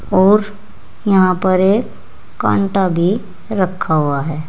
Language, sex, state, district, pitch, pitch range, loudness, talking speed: Hindi, female, Uttar Pradesh, Saharanpur, 190 Hz, 175-200 Hz, -15 LUFS, 120 wpm